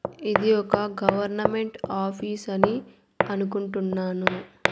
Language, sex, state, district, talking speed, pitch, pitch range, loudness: Telugu, female, Andhra Pradesh, Annamaya, 75 wpm, 200 Hz, 195-210 Hz, -25 LUFS